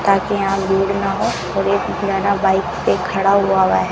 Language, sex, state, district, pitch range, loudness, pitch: Hindi, female, Rajasthan, Bikaner, 190-200 Hz, -17 LUFS, 195 Hz